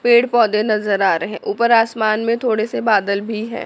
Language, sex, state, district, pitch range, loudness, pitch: Hindi, female, Chandigarh, Chandigarh, 215-235 Hz, -17 LUFS, 225 Hz